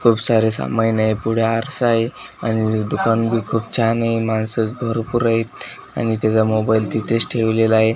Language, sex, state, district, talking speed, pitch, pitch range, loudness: Marathi, male, Maharashtra, Washim, 165 wpm, 115 Hz, 110-115 Hz, -18 LUFS